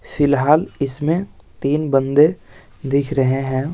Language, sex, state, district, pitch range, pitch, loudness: Hindi, male, Bihar, West Champaran, 135-150 Hz, 140 Hz, -18 LUFS